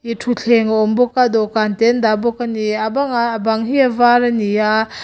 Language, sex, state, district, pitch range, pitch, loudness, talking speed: Mizo, female, Mizoram, Aizawl, 220-240 Hz, 230 Hz, -16 LUFS, 240 wpm